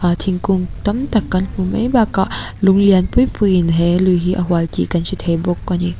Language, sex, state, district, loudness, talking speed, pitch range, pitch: Mizo, female, Mizoram, Aizawl, -16 LUFS, 240 wpm, 175-200 Hz, 185 Hz